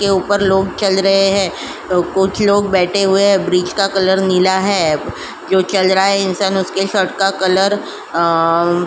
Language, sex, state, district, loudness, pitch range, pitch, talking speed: Hindi, female, Uttar Pradesh, Jyotiba Phule Nagar, -14 LUFS, 185-195 Hz, 190 Hz, 175 wpm